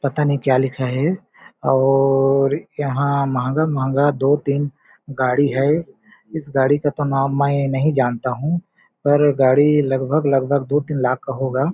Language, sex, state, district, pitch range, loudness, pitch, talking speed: Hindi, male, Chhattisgarh, Balrampur, 135-145 Hz, -18 LUFS, 140 Hz, 160 wpm